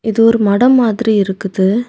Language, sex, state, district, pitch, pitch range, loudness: Tamil, female, Tamil Nadu, Kanyakumari, 220 Hz, 200-230 Hz, -12 LUFS